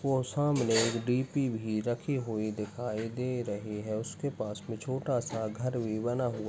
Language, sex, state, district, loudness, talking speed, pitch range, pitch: Hindi, male, Chhattisgarh, Bastar, -32 LUFS, 205 wpm, 110-130 Hz, 120 Hz